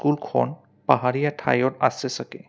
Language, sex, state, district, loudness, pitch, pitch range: Assamese, male, Assam, Kamrup Metropolitan, -23 LUFS, 130 Hz, 125-145 Hz